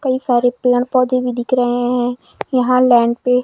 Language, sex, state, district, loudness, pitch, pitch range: Hindi, female, Madhya Pradesh, Umaria, -15 LUFS, 250 Hz, 245-255 Hz